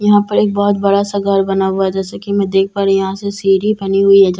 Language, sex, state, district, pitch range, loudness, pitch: Hindi, female, Bihar, Katihar, 195-200 Hz, -14 LUFS, 195 Hz